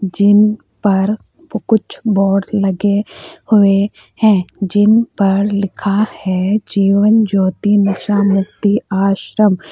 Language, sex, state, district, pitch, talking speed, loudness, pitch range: Hindi, female, Uttar Pradesh, Saharanpur, 200 Hz, 100 wpm, -14 LUFS, 195-210 Hz